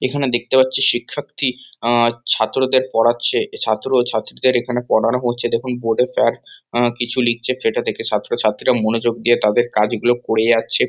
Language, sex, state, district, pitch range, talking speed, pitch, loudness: Bengali, male, West Bengal, Kolkata, 115-125 Hz, 160 wpm, 120 Hz, -17 LUFS